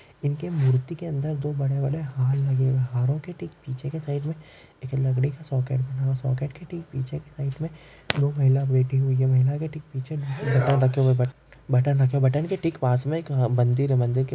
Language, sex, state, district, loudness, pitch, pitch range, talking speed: Hindi, male, Maharashtra, Chandrapur, -25 LUFS, 135 Hz, 130-150 Hz, 240 wpm